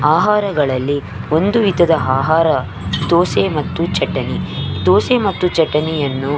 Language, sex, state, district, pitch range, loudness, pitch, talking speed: Kannada, female, Karnataka, Belgaum, 145-180 Hz, -16 LUFS, 160 Hz, 95 wpm